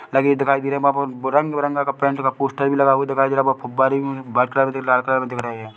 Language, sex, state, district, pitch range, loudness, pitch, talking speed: Hindi, male, Chhattisgarh, Bilaspur, 130-140 Hz, -19 LUFS, 135 Hz, 290 wpm